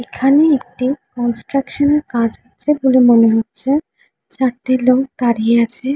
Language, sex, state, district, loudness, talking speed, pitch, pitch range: Bengali, female, West Bengal, Jhargram, -15 LUFS, 130 wpm, 255 Hz, 235-275 Hz